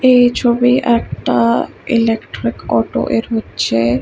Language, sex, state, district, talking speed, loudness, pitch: Bengali, female, West Bengal, Kolkata, 105 wpm, -15 LUFS, 225 Hz